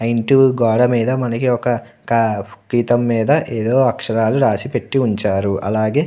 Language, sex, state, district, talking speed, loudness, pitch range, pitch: Telugu, male, Andhra Pradesh, Anantapur, 140 wpm, -17 LUFS, 110-125 Hz, 120 Hz